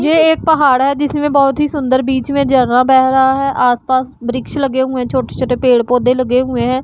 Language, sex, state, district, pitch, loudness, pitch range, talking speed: Hindi, female, Punjab, Pathankot, 260 Hz, -13 LUFS, 255-280 Hz, 230 wpm